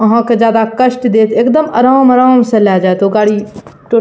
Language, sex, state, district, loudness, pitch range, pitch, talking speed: Maithili, female, Bihar, Purnia, -10 LUFS, 210-250 Hz, 230 Hz, 210 wpm